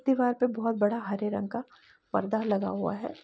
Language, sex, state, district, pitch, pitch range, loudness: Hindi, female, Uttar Pradesh, Etah, 225 Hz, 205-245 Hz, -30 LUFS